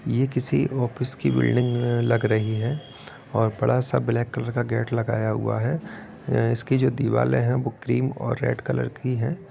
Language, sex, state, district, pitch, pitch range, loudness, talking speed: Hindi, male, Bihar, Gopalganj, 120 Hz, 115-130 Hz, -24 LUFS, 175 wpm